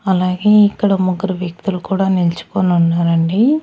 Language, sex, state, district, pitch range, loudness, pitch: Telugu, female, Andhra Pradesh, Annamaya, 175-200 Hz, -15 LUFS, 185 Hz